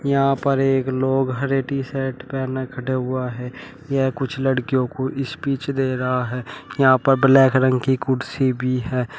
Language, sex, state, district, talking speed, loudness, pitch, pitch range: Hindi, male, Uttar Pradesh, Shamli, 175 wpm, -20 LUFS, 130 Hz, 130-135 Hz